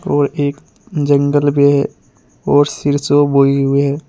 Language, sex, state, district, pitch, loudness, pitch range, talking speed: Hindi, male, Uttar Pradesh, Saharanpur, 145 Hz, -14 LUFS, 140-145 Hz, 145 wpm